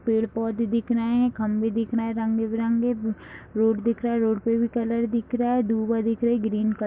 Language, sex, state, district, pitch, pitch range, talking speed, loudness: Hindi, female, Jharkhand, Jamtara, 230 Hz, 225-235 Hz, 235 wpm, -24 LUFS